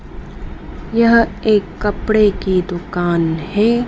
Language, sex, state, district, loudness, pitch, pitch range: Hindi, female, Madhya Pradesh, Dhar, -16 LUFS, 205 Hz, 180-220 Hz